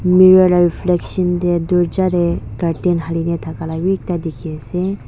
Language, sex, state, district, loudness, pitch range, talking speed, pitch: Nagamese, female, Nagaland, Dimapur, -16 LUFS, 165-180 Hz, 155 wpm, 175 Hz